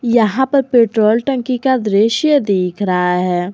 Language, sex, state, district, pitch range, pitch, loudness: Hindi, female, Jharkhand, Garhwa, 195-260 Hz, 225 Hz, -14 LUFS